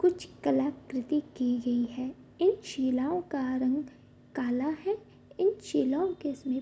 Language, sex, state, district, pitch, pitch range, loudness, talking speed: Hindi, female, Bihar, Bhagalpur, 275 Hz, 255-350 Hz, -31 LUFS, 145 wpm